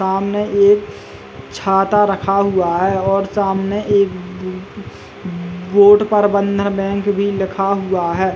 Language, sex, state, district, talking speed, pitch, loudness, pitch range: Hindi, male, Uttar Pradesh, Jalaun, 130 wpm, 195 Hz, -15 LUFS, 185-200 Hz